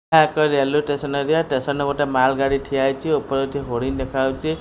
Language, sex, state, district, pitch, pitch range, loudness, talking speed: Odia, female, Odisha, Khordha, 140 Hz, 135-145 Hz, -20 LUFS, 220 wpm